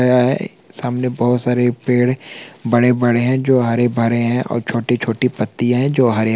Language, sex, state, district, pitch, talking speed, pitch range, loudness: Hindi, male, Chhattisgarh, Balrampur, 125 Hz, 170 wpm, 120-125 Hz, -17 LUFS